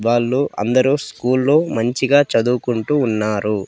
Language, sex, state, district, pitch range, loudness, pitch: Telugu, female, Andhra Pradesh, Sri Satya Sai, 115-135 Hz, -17 LUFS, 125 Hz